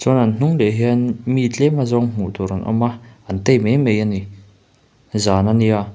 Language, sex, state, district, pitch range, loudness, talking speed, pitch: Mizo, male, Mizoram, Aizawl, 100-125 Hz, -18 LUFS, 210 wpm, 115 Hz